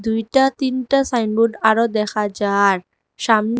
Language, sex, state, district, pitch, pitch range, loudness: Bengali, female, Assam, Hailakandi, 225 Hz, 215-250 Hz, -18 LUFS